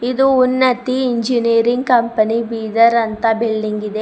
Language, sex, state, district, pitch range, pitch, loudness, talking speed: Kannada, female, Karnataka, Bidar, 225-250 Hz, 230 Hz, -15 LUFS, 120 wpm